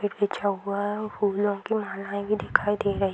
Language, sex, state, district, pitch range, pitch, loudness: Hindi, female, Bihar, Purnia, 200-205 Hz, 205 Hz, -27 LUFS